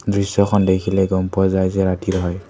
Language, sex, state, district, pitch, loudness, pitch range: Assamese, male, Assam, Kamrup Metropolitan, 95 Hz, -18 LUFS, 95-100 Hz